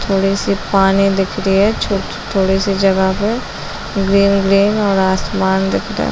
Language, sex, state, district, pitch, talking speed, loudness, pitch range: Hindi, female, Chhattisgarh, Balrampur, 195 Hz, 195 wpm, -15 LUFS, 190-200 Hz